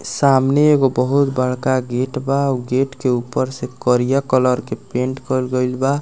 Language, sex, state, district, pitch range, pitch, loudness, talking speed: Bhojpuri, male, Bihar, Muzaffarpur, 125-135 Hz, 130 Hz, -18 LUFS, 180 wpm